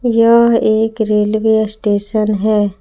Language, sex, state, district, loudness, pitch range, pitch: Hindi, female, Jharkhand, Palamu, -13 LUFS, 210-225 Hz, 215 Hz